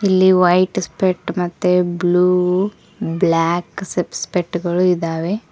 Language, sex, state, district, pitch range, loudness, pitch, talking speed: Kannada, female, Karnataka, Koppal, 175-185 Hz, -17 LUFS, 180 Hz, 100 wpm